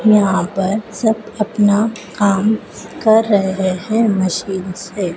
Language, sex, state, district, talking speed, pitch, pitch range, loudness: Hindi, female, Madhya Pradesh, Dhar, 115 wpm, 205 Hz, 190-220 Hz, -16 LUFS